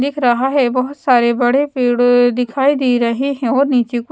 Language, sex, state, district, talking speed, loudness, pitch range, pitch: Hindi, female, Odisha, Sambalpur, 205 wpm, -15 LUFS, 245-275 Hz, 250 Hz